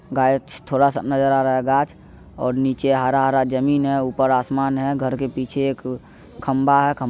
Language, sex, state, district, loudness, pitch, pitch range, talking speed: Maithili, male, Bihar, Supaul, -20 LUFS, 135 Hz, 130-140 Hz, 200 wpm